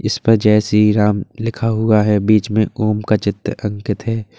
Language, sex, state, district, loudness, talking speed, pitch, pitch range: Hindi, male, Uttar Pradesh, Lalitpur, -16 LUFS, 190 wpm, 105 Hz, 105-110 Hz